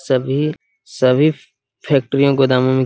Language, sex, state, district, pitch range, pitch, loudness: Hindi, male, Bihar, Araria, 130-150 Hz, 135 Hz, -16 LUFS